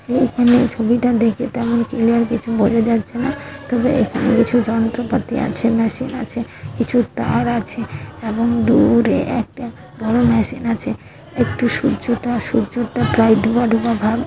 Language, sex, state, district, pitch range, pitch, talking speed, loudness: Bengali, female, West Bengal, Dakshin Dinajpur, 230-245 Hz, 235 Hz, 145 wpm, -17 LUFS